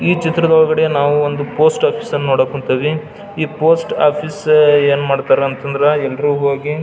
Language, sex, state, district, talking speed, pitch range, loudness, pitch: Kannada, male, Karnataka, Belgaum, 150 wpm, 145-160 Hz, -14 LUFS, 150 Hz